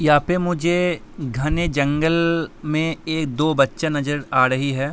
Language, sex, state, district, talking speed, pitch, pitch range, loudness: Hindi, male, Uttar Pradesh, Hamirpur, 160 wpm, 155 Hz, 140-165 Hz, -20 LUFS